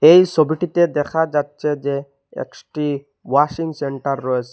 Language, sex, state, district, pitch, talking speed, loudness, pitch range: Bengali, male, Assam, Hailakandi, 145 Hz, 120 wpm, -19 LUFS, 140-160 Hz